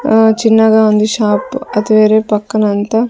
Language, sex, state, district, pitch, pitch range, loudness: Telugu, female, Andhra Pradesh, Sri Satya Sai, 215 Hz, 210-220 Hz, -11 LUFS